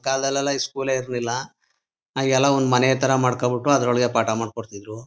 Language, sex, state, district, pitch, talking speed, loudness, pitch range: Kannada, male, Karnataka, Mysore, 125 Hz, 190 wpm, -21 LUFS, 120-135 Hz